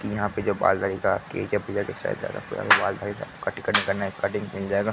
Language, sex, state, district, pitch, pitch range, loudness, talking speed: Hindi, male, Bihar, Araria, 100 Hz, 100-105 Hz, -25 LUFS, 220 wpm